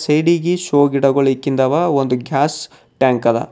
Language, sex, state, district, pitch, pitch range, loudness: Kannada, male, Karnataka, Bidar, 140 Hz, 135-155 Hz, -16 LUFS